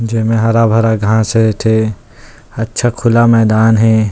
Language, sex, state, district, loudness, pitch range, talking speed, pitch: Chhattisgarhi, male, Chhattisgarh, Rajnandgaon, -12 LUFS, 110-115 Hz, 130 wpm, 115 Hz